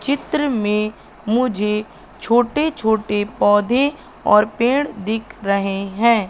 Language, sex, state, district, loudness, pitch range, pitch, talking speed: Hindi, female, Madhya Pradesh, Katni, -19 LUFS, 210-250 Hz, 220 Hz, 105 wpm